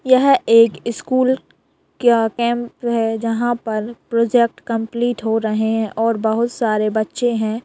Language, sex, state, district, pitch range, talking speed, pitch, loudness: Hindi, female, Bihar, Kishanganj, 225-240 Hz, 140 wpm, 230 Hz, -18 LUFS